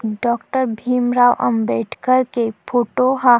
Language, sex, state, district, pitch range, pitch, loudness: Chhattisgarhi, female, Chhattisgarh, Sukma, 220-250 Hz, 245 Hz, -18 LUFS